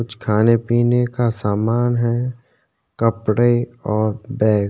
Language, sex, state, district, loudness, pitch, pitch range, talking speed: Hindi, male, Uttarakhand, Tehri Garhwal, -19 LUFS, 115 Hz, 110-120 Hz, 115 wpm